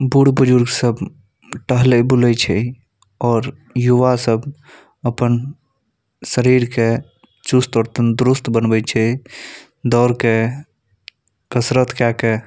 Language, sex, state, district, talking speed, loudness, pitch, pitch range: Maithili, male, Bihar, Saharsa, 100 wpm, -16 LUFS, 120 Hz, 115-130 Hz